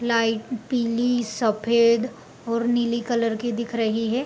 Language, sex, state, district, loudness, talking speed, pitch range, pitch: Hindi, female, Bihar, Gopalganj, -23 LUFS, 140 wpm, 230-240 Hz, 235 Hz